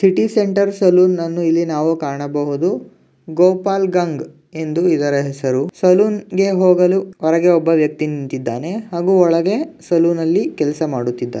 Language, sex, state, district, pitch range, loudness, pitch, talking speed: Kannada, male, Karnataka, Dakshina Kannada, 150-185 Hz, -16 LUFS, 170 Hz, 120 wpm